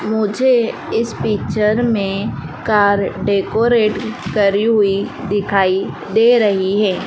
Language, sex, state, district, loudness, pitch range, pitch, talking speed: Hindi, female, Madhya Pradesh, Dhar, -16 LUFS, 200-225 Hz, 210 Hz, 100 wpm